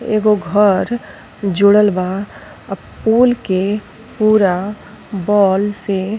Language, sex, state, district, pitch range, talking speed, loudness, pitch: Bhojpuri, female, Uttar Pradesh, Ghazipur, 195-215 Hz, 105 wpm, -15 LUFS, 205 Hz